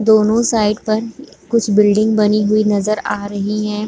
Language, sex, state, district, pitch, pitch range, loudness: Hindi, female, Jharkhand, Sahebganj, 215 Hz, 210-220 Hz, -15 LUFS